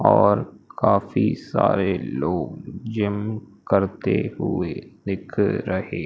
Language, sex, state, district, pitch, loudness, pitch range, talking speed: Hindi, male, Madhya Pradesh, Umaria, 100 Hz, -23 LUFS, 100-105 Hz, 90 wpm